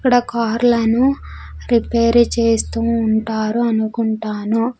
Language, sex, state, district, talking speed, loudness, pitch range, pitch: Telugu, female, Andhra Pradesh, Sri Satya Sai, 75 wpm, -17 LUFS, 225-235 Hz, 230 Hz